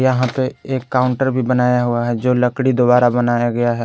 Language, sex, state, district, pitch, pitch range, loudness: Hindi, male, Jharkhand, Garhwa, 125 Hz, 120-130 Hz, -16 LUFS